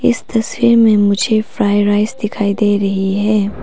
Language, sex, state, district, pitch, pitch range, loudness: Hindi, female, Arunachal Pradesh, Papum Pare, 210 Hz, 205-220 Hz, -14 LUFS